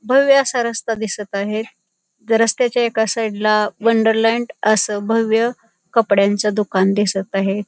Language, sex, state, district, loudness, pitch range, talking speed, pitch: Marathi, female, Maharashtra, Pune, -17 LUFS, 205-230 Hz, 125 wpm, 220 Hz